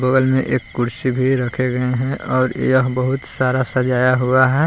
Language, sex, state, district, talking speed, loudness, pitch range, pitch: Hindi, male, Jharkhand, Palamu, 190 wpm, -18 LUFS, 125-130 Hz, 130 Hz